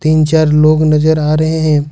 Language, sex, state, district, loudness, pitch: Hindi, male, Jharkhand, Ranchi, -11 LUFS, 155 Hz